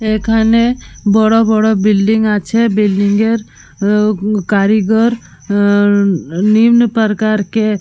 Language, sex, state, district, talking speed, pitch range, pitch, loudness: Bengali, female, Jharkhand, Jamtara, 85 wpm, 205-220 Hz, 215 Hz, -12 LUFS